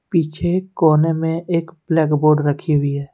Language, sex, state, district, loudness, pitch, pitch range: Hindi, male, Jharkhand, Deoghar, -18 LUFS, 160 Hz, 150-170 Hz